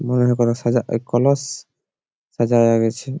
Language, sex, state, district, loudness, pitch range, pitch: Bengali, male, West Bengal, Malda, -18 LUFS, 115-130 Hz, 120 Hz